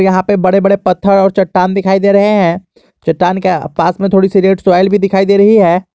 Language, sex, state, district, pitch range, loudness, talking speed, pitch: Hindi, male, Jharkhand, Garhwa, 185-200 Hz, -10 LUFS, 240 wpm, 195 Hz